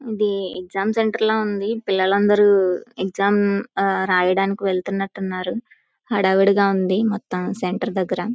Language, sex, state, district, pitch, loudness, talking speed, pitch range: Telugu, female, Andhra Pradesh, Visakhapatnam, 195 Hz, -20 LUFS, 115 wpm, 190-210 Hz